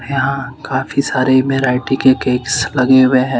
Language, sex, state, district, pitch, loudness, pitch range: Hindi, male, Haryana, Rohtak, 130 Hz, -14 LUFS, 130-135 Hz